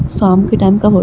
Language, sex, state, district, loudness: Hindi, female, Uttar Pradesh, Muzaffarnagar, -11 LUFS